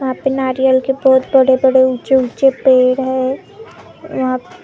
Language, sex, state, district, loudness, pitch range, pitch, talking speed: Hindi, female, Maharashtra, Gondia, -13 LUFS, 260-270 Hz, 260 Hz, 155 wpm